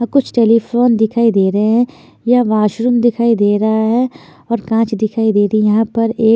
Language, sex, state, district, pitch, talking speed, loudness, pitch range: Hindi, female, Chandigarh, Chandigarh, 225 Hz, 200 wpm, -14 LUFS, 215-235 Hz